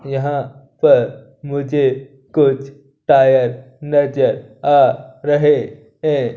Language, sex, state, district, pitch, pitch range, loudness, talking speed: Hindi, male, Punjab, Kapurthala, 140 Hz, 135-145 Hz, -16 LUFS, 85 wpm